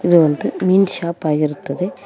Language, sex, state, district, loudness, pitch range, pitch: Kannada, female, Karnataka, Koppal, -17 LUFS, 150-185 Hz, 170 Hz